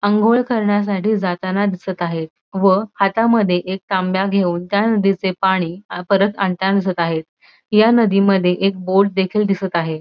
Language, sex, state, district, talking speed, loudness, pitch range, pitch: Marathi, female, Maharashtra, Dhule, 145 wpm, -17 LUFS, 185-205 Hz, 195 Hz